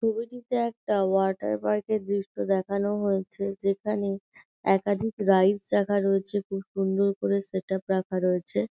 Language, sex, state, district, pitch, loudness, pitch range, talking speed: Bengali, female, West Bengal, North 24 Parganas, 195 Hz, -27 LUFS, 190-205 Hz, 130 wpm